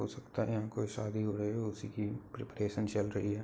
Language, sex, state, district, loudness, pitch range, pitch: Hindi, male, Uttar Pradesh, Hamirpur, -37 LUFS, 105-110 Hz, 105 Hz